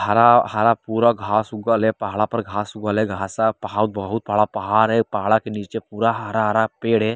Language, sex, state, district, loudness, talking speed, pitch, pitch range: Hindi, male, Bihar, Jamui, -20 LUFS, 185 wpm, 110 Hz, 105-115 Hz